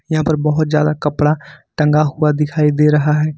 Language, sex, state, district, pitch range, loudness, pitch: Hindi, male, Jharkhand, Ranchi, 150-155 Hz, -15 LUFS, 150 Hz